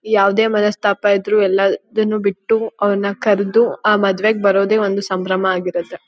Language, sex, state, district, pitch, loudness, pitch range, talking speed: Kannada, female, Karnataka, Chamarajanagar, 200 Hz, -16 LUFS, 195-215 Hz, 130 wpm